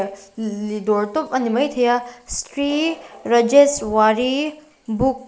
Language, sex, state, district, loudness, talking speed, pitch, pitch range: Mizo, female, Mizoram, Aizawl, -19 LUFS, 115 wpm, 245 Hz, 215-285 Hz